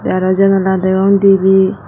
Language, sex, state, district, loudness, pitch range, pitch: Chakma, female, Tripura, Dhalai, -11 LUFS, 190-195 Hz, 190 Hz